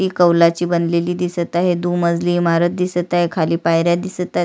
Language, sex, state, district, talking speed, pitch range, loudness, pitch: Marathi, female, Maharashtra, Sindhudurg, 160 wpm, 170-175 Hz, -17 LUFS, 175 Hz